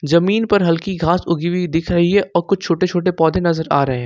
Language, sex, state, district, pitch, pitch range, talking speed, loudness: Hindi, male, Jharkhand, Ranchi, 170 Hz, 165-185 Hz, 265 wpm, -17 LUFS